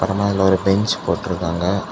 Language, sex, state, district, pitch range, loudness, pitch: Tamil, male, Tamil Nadu, Kanyakumari, 90-100 Hz, -19 LUFS, 95 Hz